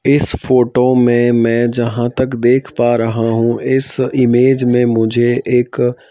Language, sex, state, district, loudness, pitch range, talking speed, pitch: Hindi, male, Madhya Pradesh, Bhopal, -13 LUFS, 120-125 Hz, 145 wpm, 120 Hz